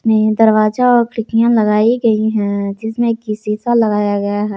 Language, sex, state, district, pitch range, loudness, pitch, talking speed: Hindi, female, Jharkhand, Palamu, 210-230 Hz, -14 LUFS, 220 Hz, 155 wpm